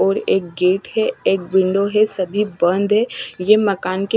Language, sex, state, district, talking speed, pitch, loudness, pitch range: Hindi, female, Chandigarh, Chandigarh, 200 wpm, 195 Hz, -18 LUFS, 185-210 Hz